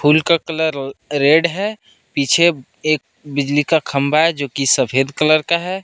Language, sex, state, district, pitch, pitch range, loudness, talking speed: Hindi, male, Jharkhand, Ranchi, 155 Hz, 140-165 Hz, -16 LUFS, 175 wpm